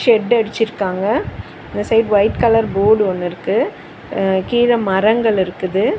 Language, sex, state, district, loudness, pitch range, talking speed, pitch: Tamil, female, Tamil Nadu, Chennai, -16 LUFS, 190-225 Hz, 130 wpm, 210 Hz